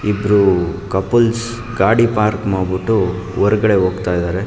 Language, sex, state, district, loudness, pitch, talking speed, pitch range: Kannada, male, Karnataka, Mysore, -16 LUFS, 100 Hz, 105 wpm, 95-110 Hz